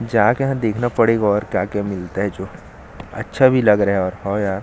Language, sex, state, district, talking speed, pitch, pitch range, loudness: Hindi, male, Chhattisgarh, Jashpur, 205 wpm, 105 Hz, 95-115 Hz, -18 LUFS